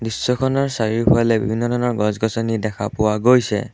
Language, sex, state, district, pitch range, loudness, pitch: Assamese, male, Assam, Sonitpur, 110-120 Hz, -19 LUFS, 115 Hz